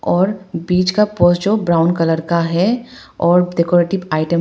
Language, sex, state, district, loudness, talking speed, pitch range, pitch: Hindi, female, Arunachal Pradesh, Papum Pare, -16 LUFS, 175 wpm, 170-190 Hz, 175 Hz